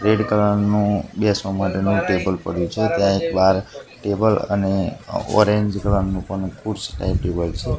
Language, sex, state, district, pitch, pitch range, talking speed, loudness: Gujarati, male, Gujarat, Gandhinagar, 100 Hz, 95-105 Hz, 160 wpm, -20 LUFS